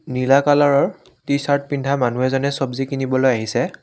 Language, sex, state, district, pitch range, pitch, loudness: Assamese, male, Assam, Kamrup Metropolitan, 130-140 Hz, 135 Hz, -19 LUFS